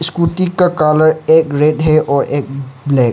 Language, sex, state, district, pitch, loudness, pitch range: Hindi, male, Arunachal Pradesh, Lower Dibang Valley, 155 Hz, -13 LUFS, 140-165 Hz